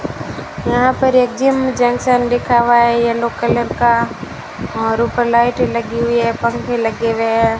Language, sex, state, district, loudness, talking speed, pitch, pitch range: Hindi, female, Rajasthan, Bikaner, -15 LUFS, 165 wpm, 235 Hz, 230-245 Hz